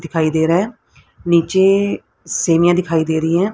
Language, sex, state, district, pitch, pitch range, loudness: Hindi, female, Haryana, Rohtak, 170 Hz, 165-190 Hz, -16 LUFS